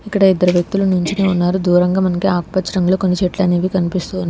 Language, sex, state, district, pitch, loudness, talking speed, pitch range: Telugu, female, Telangana, Hyderabad, 185 Hz, -16 LUFS, 195 wpm, 180-190 Hz